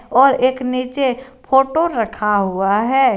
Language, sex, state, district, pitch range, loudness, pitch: Hindi, female, Jharkhand, Garhwa, 225-265 Hz, -16 LUFS, 255 Hz